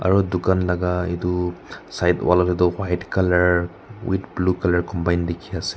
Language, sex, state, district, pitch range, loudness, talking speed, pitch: Nagamese, male, Nagaland, Kohima, 90-95 Hz, -21 LUFS, 155 wpm, 90 Hz